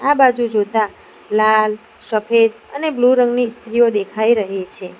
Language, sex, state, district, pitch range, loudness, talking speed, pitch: Gujarati, female, Gujarat, Valsad, 215-245 Hz, -16 LUFS, 145 wpm, 225 Hz